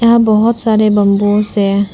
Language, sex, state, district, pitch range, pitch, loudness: Hindi, female, Arunachal Pradesh, Lower Dibang Valley, 205-220 Hz, 210 Hz, -11 LUFS